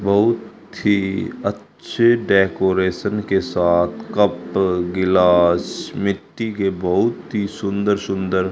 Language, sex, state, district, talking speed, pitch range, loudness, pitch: Hindi, male, Haryana, Charkhi Dadri, 105 wpm, 95-105 Hz, -19 LUFS, 95 Hz